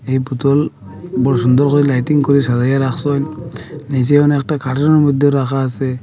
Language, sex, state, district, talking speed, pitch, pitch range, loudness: Bengali, male, Assam, Hailakandi, 160 wpm, 140 Hz, 130-145 Hz, -15 LUFS